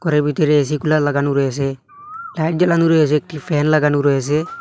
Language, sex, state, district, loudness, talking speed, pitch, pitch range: Bengali, male, Assam, Hailakandi, -17 LUFS, 170 wpm, 150 Hz, 145-160 Hz